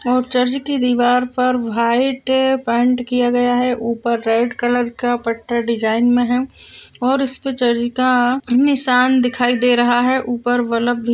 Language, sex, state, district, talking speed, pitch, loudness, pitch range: Hindi, female, Maharashtra, Sindhudurg, 165 wpm, 245 Hz, -17 LUFS, 240-255 Hz